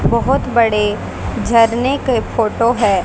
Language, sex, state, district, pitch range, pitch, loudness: Hindi, female, Haryana, Jhajjar, 210-240 Hz, 230 Hz, -15 LUFS